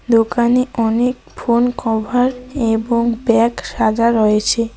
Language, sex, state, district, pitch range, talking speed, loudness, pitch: Bengali, female, West Bengal, Cooch Behar, 225-245 Hz, 100 wpm, -16 LUFS, 235 Hz